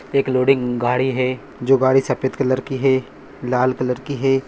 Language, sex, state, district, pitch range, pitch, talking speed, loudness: Hindi, male, Bihar, Purnia, 125-135 Hz, 130 Hz, 185 wpm, -19 LUFS